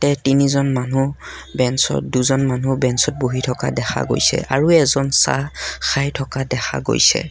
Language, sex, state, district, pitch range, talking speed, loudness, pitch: Assamese, male, Assam, Kamrup Metropolitan, 130-140 Hz, 150 wpm, -18 LUFS, 135 Hz